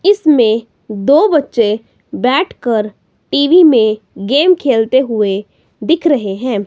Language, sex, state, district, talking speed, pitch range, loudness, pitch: Hindi, female, Himachal Pradesh, Shimla, 110 wpm, 215-305 Hz, -13 LUFS, 245 Hz